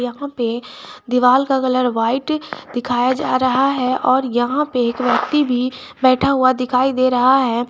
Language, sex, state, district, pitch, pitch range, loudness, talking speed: Hindi, female, Jharkhand, Garhwa, 255 Hz, 245-270 Hz, -17 LUFS, 170 wpm